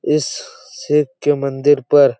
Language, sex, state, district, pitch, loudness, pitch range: Hindi, male, Chhattisgarh, Raigarh, 145 Hz, -16 LUFS, 140-150 Hz